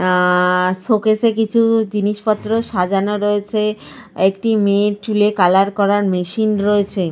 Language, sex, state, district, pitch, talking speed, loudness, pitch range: Bengali, female, Jharkhand, Sahebganj, 205 Hz, 125 wpm, -16 LUFS, 190-215 Hz